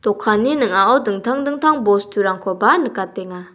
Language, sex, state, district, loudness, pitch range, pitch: Garo, female, Meghalaya, South Garo Hills, -17 LUFS, 190-260 Hz, 205 Hz